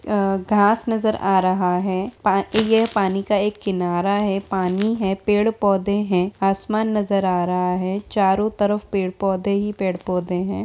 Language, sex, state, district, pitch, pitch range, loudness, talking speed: Hindi, female, Bihar, Jahanabad, 195 Hz, 185-210 Hz, -20 LUFS, 170 wpm